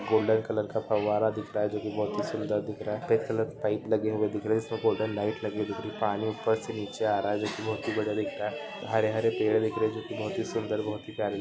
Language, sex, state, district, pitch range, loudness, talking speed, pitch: Hindi, male, Maharashtra, Dhule, 105-110 Hz, -30 LUFS, 310 wpm, 110 Hz